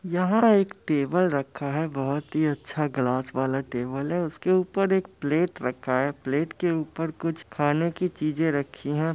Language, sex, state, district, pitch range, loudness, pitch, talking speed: Hindi, male, Bihar, Muzaffarpur, 140-175 Hz, -26 LUFS, 155 Hz, 185 wpm